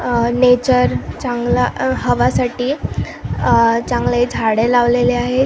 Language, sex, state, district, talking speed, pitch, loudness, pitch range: Marathi, female, Maharashtra, Gondia, 100 wpm, 240 Hz, -16 LUFS, 220-245 Hz